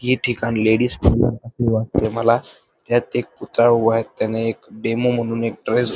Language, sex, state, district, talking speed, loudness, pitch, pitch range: Marathi, male, Maharashtra, Dhule, 170 wpm, -19 LUFS, 115 Hz, 115-120 Hz